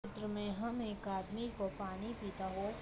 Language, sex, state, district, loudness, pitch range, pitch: Hindi, female, Uttar Pradesh, Deoria, -42 LUFS, 195-220 Hz, 205 Hz